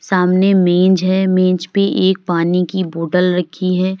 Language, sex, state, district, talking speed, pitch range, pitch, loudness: Hindi, female, Uttar Pradesh, Lalitpur, 165 wpm, 180-190 Hz, 185 Hz, -15 LUFS